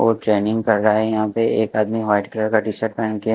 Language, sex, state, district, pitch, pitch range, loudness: Hindi, male, Maharashtra, Mumbai Suburban, 110 Hz, 105-110 Hz, -19 LUFS